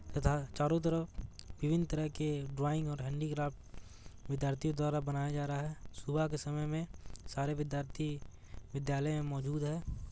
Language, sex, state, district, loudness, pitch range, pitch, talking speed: Hindi, male, Bihar, Gaya, -37 LUFS, 140-150 Hz, 145 Hz, 150 wpm